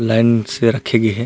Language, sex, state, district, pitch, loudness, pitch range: Chhattisgarhi, male, Chhattisgarh, Rajnandgaon, 115 Hz, -16 LUFS, 110-115 Hz